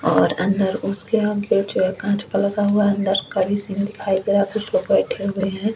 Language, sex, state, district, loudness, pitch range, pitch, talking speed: Hindi, female, Chhattisgarh, Bastar, -20 LUFS, 195-205 Hz, 200 Hz, 165 wpm